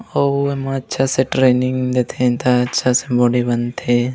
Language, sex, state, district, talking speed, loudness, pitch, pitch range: Chhattisgarhi, male, Chhattisgarh, Raigarh, 175 wpm, -17 LUFS, 125 Hz, 125-135 Hz